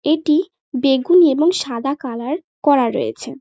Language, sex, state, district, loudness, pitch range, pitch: Bengali, female, West Bengal, North 24 Parganas, -17 LUFS, 265-335 Hz, 290 Hz